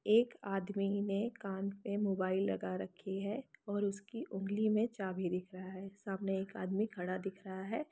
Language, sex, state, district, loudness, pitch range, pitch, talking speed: Hindi, female, Chhattisgarh, Sukma, -38 LUFS, 190-205 Hz, 195 Hz, 180 wpm